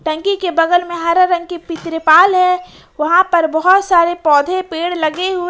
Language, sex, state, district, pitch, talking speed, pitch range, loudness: Hindi, female, Jharkhand, Ranchi, 345 Hz, 195 wpm, 330-365 Hz, -14 LUFS